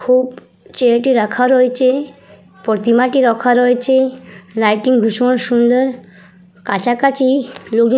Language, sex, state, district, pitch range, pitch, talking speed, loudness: Bengali, female, West Bengal, Purulia, 220-255 Hz, 245 Hz, 100 wpm, -14 LUFS